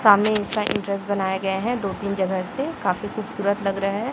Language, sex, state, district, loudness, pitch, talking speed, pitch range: Hindi, female, Chhattisgarh, Raipur, -23 LUFS, 200 Hz, 230 wpm, 195-215 Hz